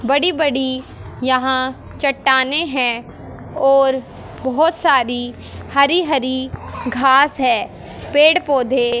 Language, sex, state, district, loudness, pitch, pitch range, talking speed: Hindi, female, Haryana, Jhajjar, -16 LUFS, 265 Hz, 255-290 Hz, 100 wpm